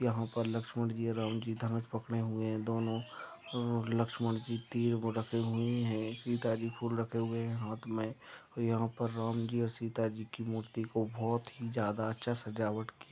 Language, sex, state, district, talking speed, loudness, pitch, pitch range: Hindi, male, Chhattisgarh, Jashpur, 195 wpm, -36 LUFS, 115 Hz, 110-115 Hz